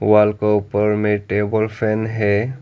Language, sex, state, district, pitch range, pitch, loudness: Hindi, male, Arunachal Pradesh, Lower Dibang Valley, 105-110 Hz, 105 Hz, -18 LUFS